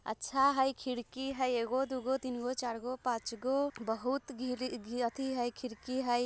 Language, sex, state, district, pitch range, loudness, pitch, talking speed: Bajjika, female, Bihar, Vaishali, 240-265 Hz, -35 LUFS, 255 Hz, 115 wpm